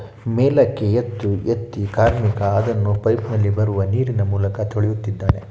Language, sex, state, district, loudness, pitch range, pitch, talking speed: Kannada, male, Karnataka, Shimoga, -19 LUFS, 100-115 Hz, 105 Hz, 120 wpm